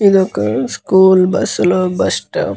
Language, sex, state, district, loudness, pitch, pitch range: Telugu, male, Andhra Pradesh, Guntur, -13 LUFS, 185 Hz, 180-190 Hz